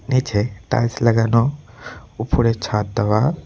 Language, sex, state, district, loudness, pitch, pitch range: Bengali, male, West Bengal, Cooch Behar, -19 LUFS, 115 Hz, 105-130 Hz